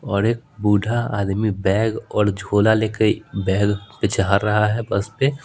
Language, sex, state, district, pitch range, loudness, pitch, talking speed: Hindi, male, Bihar, Patna, 100-110 Hz, -20 LUFS, 105 Hz, 155 wpm